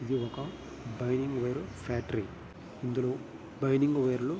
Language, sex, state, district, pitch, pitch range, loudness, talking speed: Telugu, male, Andhra Pradesh, Guntur, 125 Hz, 120-135 Hz, -32 LUFS, 95 wpm